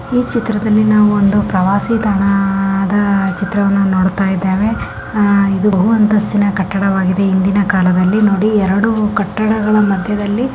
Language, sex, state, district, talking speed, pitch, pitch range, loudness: Kannada, female, Karnataka, Gulbarga, 130 wpm, 200 Hz, 195-210 Hz, -13 LUFS